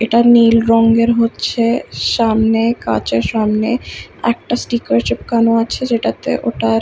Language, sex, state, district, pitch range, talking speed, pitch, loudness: Bengali, female, West Bengal, Kolkata, 215-235 Hz, 115 wpm, 230 Hz, -15 LUFS